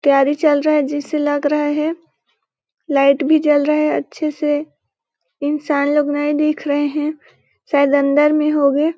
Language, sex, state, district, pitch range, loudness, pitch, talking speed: Hindi, female, Chhattisgarh, Balrampur, 285-300 Hz, -17 LUFS, 295 Hz, 160 wpm